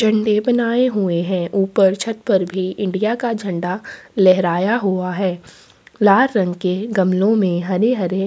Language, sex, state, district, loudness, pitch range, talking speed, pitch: Hindi, female, Chhattisgarh, Sukma, -18 LUFS, 185-220 Hz, 145 wpm, 195 Hz